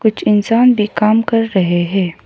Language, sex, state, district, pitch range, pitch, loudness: Hindi, female, Arunachal Pradesh, Lower Dibang Valley, 190-225 Hz, 215 Hz, -13 LUFS